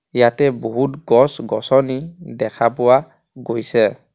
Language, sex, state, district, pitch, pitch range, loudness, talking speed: Assamese, male, Assam, Kamrup Metropolitan, 130 Hz, 120-140 Hz, -17 LUFS, 100 wpm